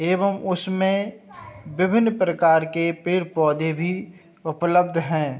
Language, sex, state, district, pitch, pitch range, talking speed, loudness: Hindi, male, Uttar Pradesh, Budaun, 175 Hz, 165-190 Hz, 110 wpm, -22 LUFS